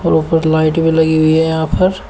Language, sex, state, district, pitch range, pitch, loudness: Hindi, male, Uttar Pradesh, Shamli, 160-165 Hz, 160 Hz, -13 LUFS